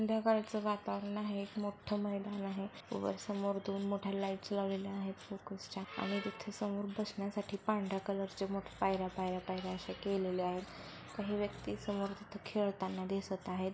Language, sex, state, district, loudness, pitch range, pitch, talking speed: Marathi, female, Maharashtra, Solapur, -39 LUFS, 195-205 Hz, 200 Hz, 145 wpm